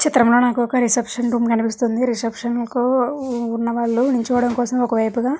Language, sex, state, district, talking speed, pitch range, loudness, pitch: Telugu, female, Andhra Pradesh, Srikakulam, 165 wpm, 235-245 Hz, -19 LUFS, 240 Hz